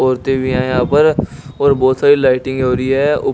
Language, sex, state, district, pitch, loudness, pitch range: Hindi, male, Uttar Pradesh, Shamli, 130 Hz, -14 LUFS, 130-140 Hz